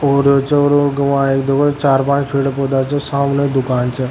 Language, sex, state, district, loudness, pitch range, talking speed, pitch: Rajasthani, male, Rajasthan, Churu, -15 LUFS, 135-140 Hz, 160 wpm, 140 Hz